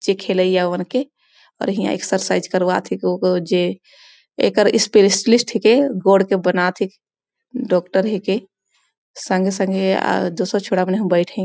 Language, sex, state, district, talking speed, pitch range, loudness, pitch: Sadri, female, Chhattisgarh, Jashpur, 170 wpm, 185-205 Hz, -18 LUFS, 190 Hz